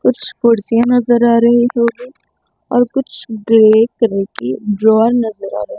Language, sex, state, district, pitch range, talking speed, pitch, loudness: Hindi, female, Chandigarh, Chandigarh, 220-240 Hz, 155 wpm, 230 Hz, -13 LUFS